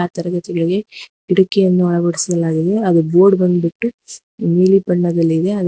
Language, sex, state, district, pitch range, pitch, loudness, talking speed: Kannada, female, Karnataka, Bangalore, 170-190 Hz, 180 Hz, -15 LUFS, 95 wpm